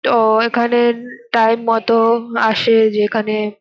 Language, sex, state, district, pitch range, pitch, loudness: Bengali, female, West Bengal, North 24 Parganas, 220-235 Hz, 225 Hz, -15 LUFS